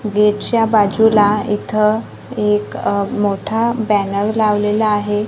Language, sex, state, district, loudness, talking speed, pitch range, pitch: Marathi, female, Maharashtra, Gondia, -16 LUFS, 100 wpm, 205-220 Hz, 210 Hz